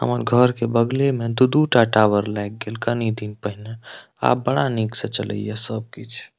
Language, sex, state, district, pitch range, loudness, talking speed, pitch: Maithili, male, Bihar, Madhepura, 105-120 Hz, -21 LUFS, 195 wpm, 115 Hz